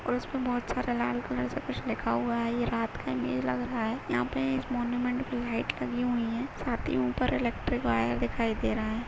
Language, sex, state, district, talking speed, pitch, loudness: Hindi, female, Chhattisgarh, Rajnandgaon, 230 wpm, 220 Hz, -31 LUFS